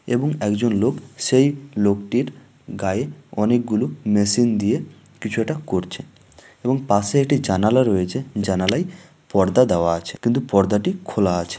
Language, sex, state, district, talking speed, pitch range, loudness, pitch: Bengali, male, West Bengal, Dakshin Dinajpur, 145 wpm, 100-135 Hz, -20 LUFS, 110 Hz